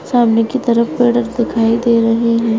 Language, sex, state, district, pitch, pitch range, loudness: Hindi, female, Maharashtra, Sindhudurg, 235 Hz, 230-240 Hz, -14 LUFS